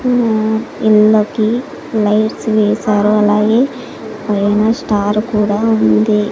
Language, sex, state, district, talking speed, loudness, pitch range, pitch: Telugu, female, Andhra Pradesh, Sri Satya Sai, 85 wpm, -13 LUFS, 210-225 Hz, 215 Hz